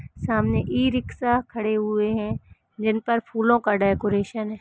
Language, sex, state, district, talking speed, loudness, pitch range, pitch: Hindi, female, Uttar Pradesh, Etah, 155 wpm, -23 LUFS, 210-235 Hz, 220 Hz